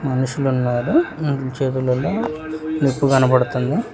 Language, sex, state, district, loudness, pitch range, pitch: Telugu, male, Telangana, Hyderabad, -19 LUFS, 130-155 Hz, 135 Hz